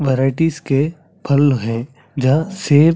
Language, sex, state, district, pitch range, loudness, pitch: Hindi, male, Chhattisgarh, Sarguja, 135-155 Hz, -17 LUFS, 145 Hz